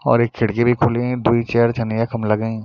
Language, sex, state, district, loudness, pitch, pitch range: Garhwali, male, Uttarakhand, Tehri Garhwal, -18 LUFS, 115 Hz, 115-120 Hz